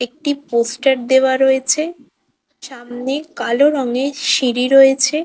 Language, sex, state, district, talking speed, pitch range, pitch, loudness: Bengali, female, West Bengal, Kolkata, 105 wpm, 250-285 Hz, 265 Hz, -15 LUFS